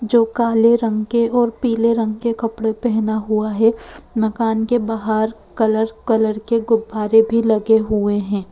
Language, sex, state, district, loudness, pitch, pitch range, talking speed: Hindi, female, Madhya Pradesh, Bhopal, -18 LUFS, 225 Hz, 220-230 Hz, 160 wpm